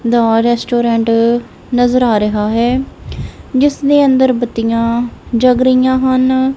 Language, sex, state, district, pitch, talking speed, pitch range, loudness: Punjabi, male, Punjab, Kapurthala, 245 Hz, 120 wpm, 230-260 Hz, -13 LUFS